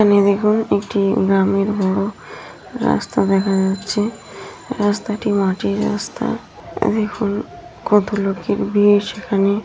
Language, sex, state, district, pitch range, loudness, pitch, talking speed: Bengali, female, West Bengal, Jhargram, 195-210 Hz, -18 LUFS, 200 Hz, 105 wpm